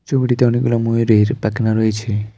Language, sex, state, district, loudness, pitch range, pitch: Bengali, male, West Bengal, Alipurduar, -16 LUFS, 110-120 Hz, 115 Hz